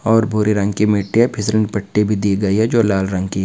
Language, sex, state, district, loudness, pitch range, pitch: Hindi, male, Maharashtra, Nagpur, -17 LUFS, 100-110 Hz, 105 Hz